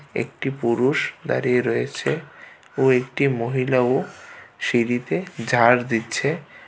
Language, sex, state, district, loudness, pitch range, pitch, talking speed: Bengali, male, Tripura, West Tripura, -22 LUFS, 115-130 Hz, 125 Hz, 90 wpm